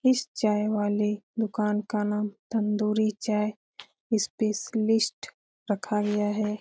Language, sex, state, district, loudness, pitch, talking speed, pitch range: Hindi, female, Bihar, Lakhisarai, -27 LUFS, 210 Hz, 120 wpm, 210-220 Hz